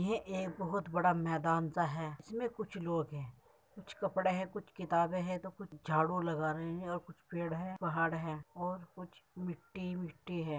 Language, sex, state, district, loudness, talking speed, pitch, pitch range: Hindi, male, Uttar Pradesh, Muzaffarnagar, -37 LUFS, 185 wpm, 175 Hz, 165-185 Hz